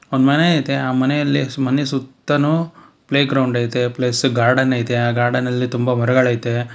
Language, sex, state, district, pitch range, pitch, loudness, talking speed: Kannada, male, Karnataka, Bangalore, 125-140 Hz, 130 Hz, -17 LUFS, 180 wpm